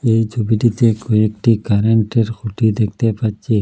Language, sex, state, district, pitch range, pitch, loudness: Bengali, male, Assam, Hailakandi, 110-115 Hz, 110 Hz, -16 LUFS